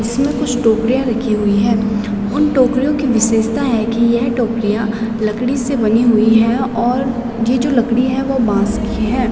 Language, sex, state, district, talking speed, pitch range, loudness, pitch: Hindi, female, Uttarakhand, Tehri Garhwal, 180 wpm, 220-255 Hz, -15 LUFS, 235 Hz